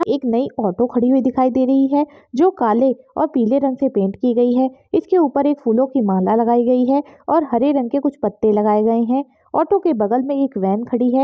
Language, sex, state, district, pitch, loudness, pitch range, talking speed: Hindi, female, Maharashtra, Solapur, 260 Hz, -17 LUFS, 235-280 Hz, 240 wpm